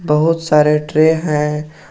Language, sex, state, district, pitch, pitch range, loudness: Hindi, male, Jharkhand, Garhwa, 150 Hz, 150-160 Hz, -14 LUFS